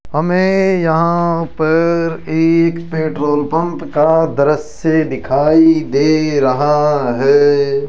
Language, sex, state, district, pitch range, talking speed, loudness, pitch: Hindi, male, Rajasthan, Jaipur, 145-165 Hz, 90 wpm, -14 LUFS, 155 Hz